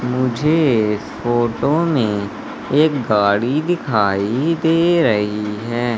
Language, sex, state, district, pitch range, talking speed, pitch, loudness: Hindi, male, Madhya Pradesh, Katni, 105-150 Hz, 90 wpm, 120 Hz, -17 LUFS